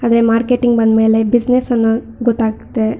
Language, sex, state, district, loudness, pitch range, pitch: Kannada, female, Karnataka, Shimoga, -14 LUFS, 225-240 Hz, 230 Hz